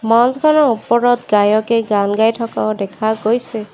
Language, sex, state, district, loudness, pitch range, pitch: Assamese, female, Assam, Kamrup Metropolitan, -15 LUFS, 215-240 Hz, 225 Hz